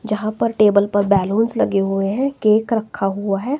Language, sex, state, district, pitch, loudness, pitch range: Hindi, female, Himachal Pradesh, Shimla, 210 Hz, -18 LUFS, 200-225 Hz